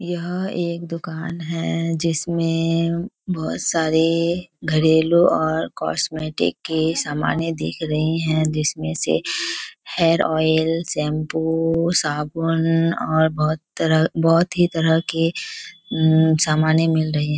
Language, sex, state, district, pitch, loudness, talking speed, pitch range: Hindi, female, Bihar, Kishanganj, 165 Hz, -20 LUFS, 110 wpm, 160-165 Hz